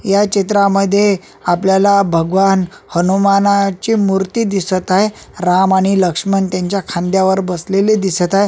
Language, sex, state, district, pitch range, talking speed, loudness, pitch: Marathi, male, Maharashtra, Solapur, 185-200 Hz, 115 wpm, -14 LUFS, 195 Hz